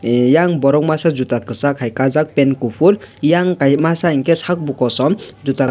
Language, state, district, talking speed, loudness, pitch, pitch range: Kokborok, Tripura, West Tripura, 170 wpm, -15 LUFS, 140 Hz, 130-165 Hz